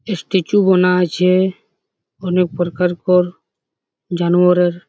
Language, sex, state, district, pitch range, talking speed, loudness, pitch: Bengali, male, West Bengal, Jhargram, 175-185 Hz, 75 wpm, -16 LUFS, 180 Hz